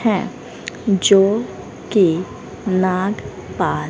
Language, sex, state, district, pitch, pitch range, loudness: Hindi, female, Haryana, Rohtak, 195 Hz, 185-210 Hz, -18 LUFS